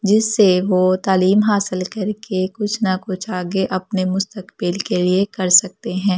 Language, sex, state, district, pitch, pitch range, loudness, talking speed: Hindi, female, Delhi, New Delhi, 190 Hz, 185-205 Hz, -18 LUFS, 175 wpm